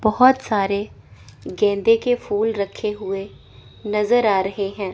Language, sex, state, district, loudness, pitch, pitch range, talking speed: Hindi, female, Chandigarh, Chandigarh, -20 LUFS, 210 Hz, 200-225 Hz, 135 wpm